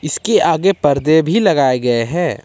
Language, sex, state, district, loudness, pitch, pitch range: Hindi, male, Jharkhand, Ranchi, -14 LUFS, 155 Hz, 140-185 Hz